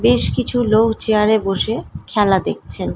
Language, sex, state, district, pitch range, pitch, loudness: Bengali, female, West Bengal, Malda, 205-220 Hz, 215 Hz, -17 LUFS